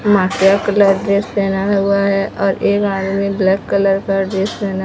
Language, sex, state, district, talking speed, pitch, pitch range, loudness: Hindi, female, Odisha, Sambalpur, 160 wpm, 195 Hz, 195-200 Hz, -15 LUFS